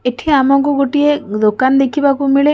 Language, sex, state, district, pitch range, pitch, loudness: Odia, female, Odisha, Khordha, 260-290 Hz, 275 Hz, -13 LUFS